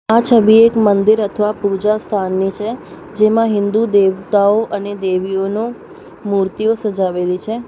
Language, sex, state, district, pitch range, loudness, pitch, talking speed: Gujarati, female, Gujarat, Valsad, 195-220 Hz, -15 LUFS, 210 Hz, 115 wpm